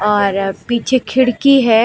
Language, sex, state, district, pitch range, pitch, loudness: Hindi, female, Uttar Pradesh, Lucknow, 210-260 Hz, 235 Hz, -14 LUFS